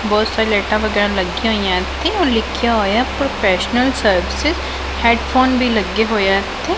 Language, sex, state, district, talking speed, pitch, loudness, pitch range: Punjabi, female, Punjab, Pathankot, 160 wpm, 220 Hz, -16 LUFS, 205-245 Hz